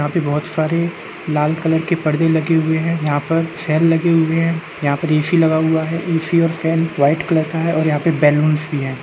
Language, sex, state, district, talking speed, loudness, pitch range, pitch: Hindi, male, Uttar Pradesh, Jalaun, 240 wpm, -17 LUFS, 155-165 Hz, 160 Hz